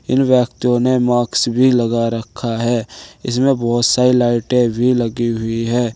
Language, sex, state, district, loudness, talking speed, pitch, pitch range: Hindi, male, Uttar Pradesh, Saharanpur, -16 LUFS, 160 wpm, 120 Hz, 115-125 Hz